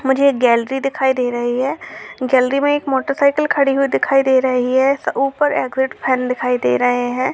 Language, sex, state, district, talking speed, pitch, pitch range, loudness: Hindi, female, Bihar, Jamui, 195 wpm, 265 Hz, 250-275 Hz, -16 LUFS